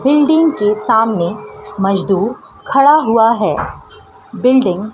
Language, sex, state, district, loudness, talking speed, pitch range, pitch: Hindi, female, Madhya Pradesh, Dhar, -13 LUFS, 110 wpm, 205-270 Hz, 225 Hz